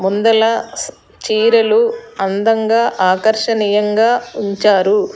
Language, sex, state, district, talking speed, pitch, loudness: Telugu, female, Telangana, Hyderabad, 60 wpm, 225 Hz, -14 LUFS